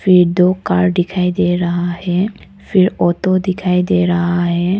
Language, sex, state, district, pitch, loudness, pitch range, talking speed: Hindi, female, Arunachal Pradesh, Papum Pare, 180 Hz, -15 LUFS, 175-185 Hz, 165 wpm